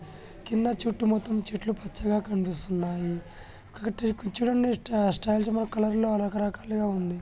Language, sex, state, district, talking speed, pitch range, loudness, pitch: Telugu, male, Telangana, Nalgonda, 110 wpm, 190-225 Hz, -28 LUFS, 210 Hz